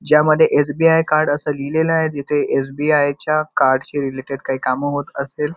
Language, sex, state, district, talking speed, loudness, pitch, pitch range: Marathi, male, Maharashtra, Nagpur, 185 wpm, -18 LUFS, 145 Hz, 140-155 Hz